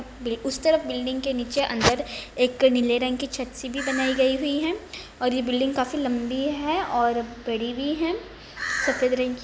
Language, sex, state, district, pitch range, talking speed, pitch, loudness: Hindi, female, Bihar, Begusarai, 250-280 Hz, 195 wpm, 260 Hz, -25 LUFS